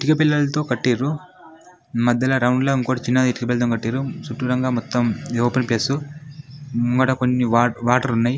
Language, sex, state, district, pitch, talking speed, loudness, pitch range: Telugu, male, Telangana, Nalgonda, 125 Hz, 150 wpm, -20 LUFS, 120-140 Hz